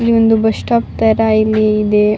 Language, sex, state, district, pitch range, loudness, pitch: Kannada, female, Karnataka, Raichur, 215-225 Hz, -13 LUFS, 220 Hz